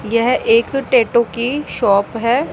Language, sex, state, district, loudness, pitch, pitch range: Hindi, female, Rajasthan, Jaipur, -16 LUFS, 245 Hz, 230-295 Hz